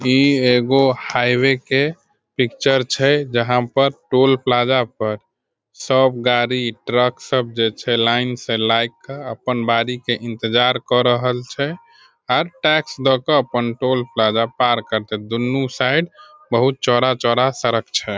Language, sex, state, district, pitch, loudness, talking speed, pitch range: Maithili, male, Bihar, Sitamarhi, 125 Hz, -18 LUFS, 140 wpm, 120-135 Hz